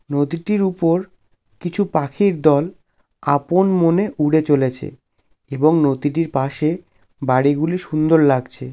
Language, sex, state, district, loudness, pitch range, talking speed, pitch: Bengali, male, West Bengal, Jalpaiguri, -18 LUFS, 140-175 Hz, 110 wpm, 155 Hz